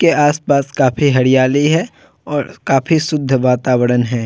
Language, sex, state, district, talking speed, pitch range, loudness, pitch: Hindi, male, Bihar, Vaishali, 140 wpm, 130-150 Hz, -14 LUFS, 140 Hz